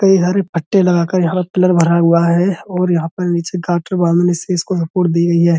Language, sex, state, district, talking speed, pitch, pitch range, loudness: Hindi, male, Uttar Pradesh, Budaun, 225 wpm, 175 Hz, 170-185 Hz, -15 LUFS